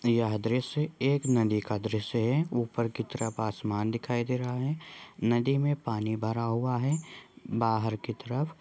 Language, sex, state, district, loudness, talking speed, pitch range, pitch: Hindi, male, Jharkhand, Sahebganj, -30 LUFS, 165 wpm, 110-135 Hz, 120 Hz